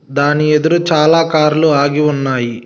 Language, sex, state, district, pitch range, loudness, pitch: Telugu, male, Telangana, Hyderabad, 140-155 Hz, -12 LUFS, 150 Hz